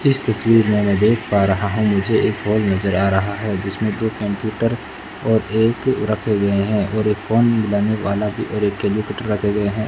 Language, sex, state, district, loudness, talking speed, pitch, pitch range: Hindi, male, Rajasthan, Bikaner, -18 LUFS, 205 wpm, 105 Hz, 100-110 Hz